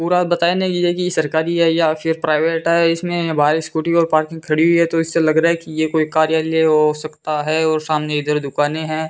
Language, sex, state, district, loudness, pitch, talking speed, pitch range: Hindi, female, Rajasthan, Bikaner, -17 LUFS, 160 Hz, 225 wpm, 155-170 Hz